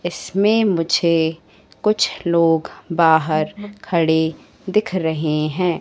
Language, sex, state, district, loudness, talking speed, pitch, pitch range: Hindi, female, Madhya Pradesh, Katni, -18 LUFS, 95 wpm, 170 Hz, 160-190 Hz